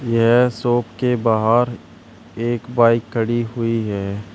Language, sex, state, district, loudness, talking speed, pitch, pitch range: Hindi, male, Uttar Pradesh, Shamli, -18 LUFS, 125 wpm, 115 Hz, 115-120 Hz